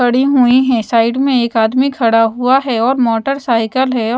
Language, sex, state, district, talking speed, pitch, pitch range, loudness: Hindi, female, Odisha, Sambalpur, 200 wpm, 245 Hz, 230-260 Hz, -13 LUFS